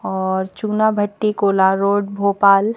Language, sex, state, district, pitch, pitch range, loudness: Hindi, female, Madhya Pradesh, Bhopal, 200 Hz, 195-210 Hz, -17 LUFS